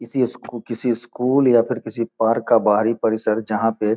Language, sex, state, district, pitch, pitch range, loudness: Hindi, male, Bihar, Gopalganj, 115 Hz, 110-120 Hz, -20 LUFS